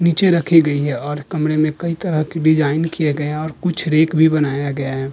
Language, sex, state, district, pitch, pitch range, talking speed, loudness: Hindi, male, Uttar Pradesh, Jalaun, 155 Hz, 145-165 Hz, 245 wpm, -17 LUFS